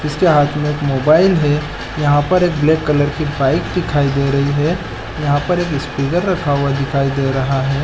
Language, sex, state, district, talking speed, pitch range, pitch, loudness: Hindi, male, Chhattisgarh, Balrampur, 215 wpm, 140-155 Hz, 145 Hz, -16 LUFS